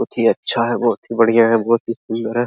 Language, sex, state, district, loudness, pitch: Hindi, male, Bihar, Araria, -17 LUFS, 115 Hz